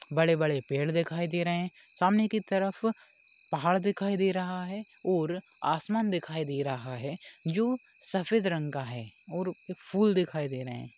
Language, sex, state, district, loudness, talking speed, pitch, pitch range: Hindi, female, Bihar, Bhagalpur, -30 LUFS, 170 wpm, 175 Hz, 155-195 Hz